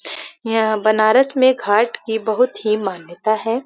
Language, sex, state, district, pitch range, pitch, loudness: Hindi, female, Uttar Pradesh, Varanasi, 215-235 Hz, 220 Hz, -17 LUFS